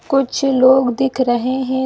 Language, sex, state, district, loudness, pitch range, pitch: Hindi, female, Chhattisgarh, Bilaspur, -15 LUFS, 255-265 Hz, 260 Hz